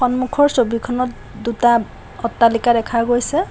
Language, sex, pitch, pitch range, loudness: Assamese, female, 240 Hz, 235-250 Hz, -17 LUFS